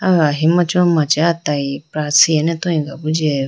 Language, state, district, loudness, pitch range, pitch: Idu Mishmi, Arunachal Pradesh, Lower Dibang Valley, -16 LUFS, 150-170 Hz, 155 Hz